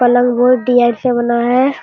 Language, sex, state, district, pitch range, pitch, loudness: Hindi, male, Bihar, Jamui, 240-250 Hz, 245 Hz, -13 LUFS